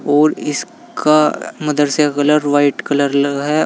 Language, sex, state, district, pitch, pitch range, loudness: Hindi, male, Uttar Pradesh, Saharanpur, 145 Hz, 145-150 Hz, -15 LUFS